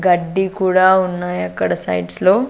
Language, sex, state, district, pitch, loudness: Telugu, female, Andhra Pradesh, Sri Satya Sai, 180 Hz, -17 LUFS